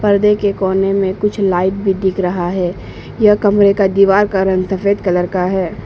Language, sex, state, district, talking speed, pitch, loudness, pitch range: Hindi, female, Arunachal Pradesh, Papum Pare, 205 wpm, 195 Hz, -14 LUFS, 185-200 Hz